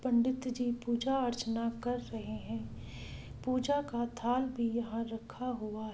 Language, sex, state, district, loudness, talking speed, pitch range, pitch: Hindi, female, Bihar, Saran, -35 LUFS, 150 wpm, 215-250 Hz, 235 Hz